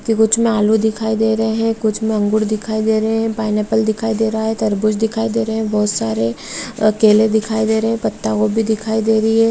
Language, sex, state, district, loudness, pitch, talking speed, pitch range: Hindi, female, Bihar, Araria, -16 LUFS, 220 Hz, 225 wpm, 215-225 Hz